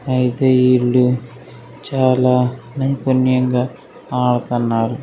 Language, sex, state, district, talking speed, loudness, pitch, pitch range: Telugu, male, Telangana, Karimnagar, 60 wpm, -17 LUFS, 125 Hz, 125-130 Hz